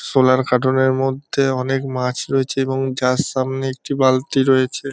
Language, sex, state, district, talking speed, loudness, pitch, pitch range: Bengali, male, West Bengal, North 24 Parganas, 145 wpm, -18 LUFS, 130 Hz, 130-135 Hz